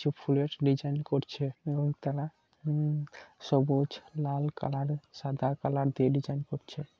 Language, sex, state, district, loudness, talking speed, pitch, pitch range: Bengali, male, West Bengal, Kolkata, -32 LUFS, 130 wpm, 145 Hz, 140-150 Hz